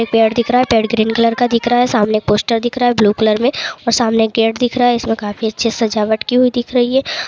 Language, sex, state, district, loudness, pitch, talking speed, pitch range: Hindi, female, West Bengal, Paschim Medinipur, -14 LUFS, 230 Hz, 270 wpm, 220-245 Hz